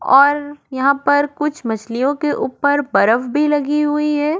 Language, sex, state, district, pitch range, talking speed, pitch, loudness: Hindi, female, Goa, North and South Goa, 265-295 Hz, 165 wpm, 290 Hz, -17 LUFS